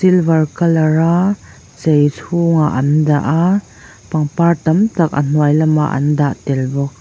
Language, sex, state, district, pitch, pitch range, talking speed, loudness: Mizo, female, Mizoram, Aizawl, 155 Hz, 145-170 Hz, 155 wpm, -14 LUFS